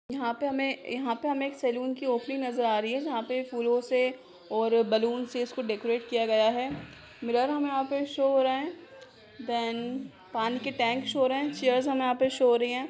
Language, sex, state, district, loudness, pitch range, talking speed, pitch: Hindi, female, Jharkhand, Sahebganj, -28 LUFS, 235-265 Hz, 225 wpm, 250 Hz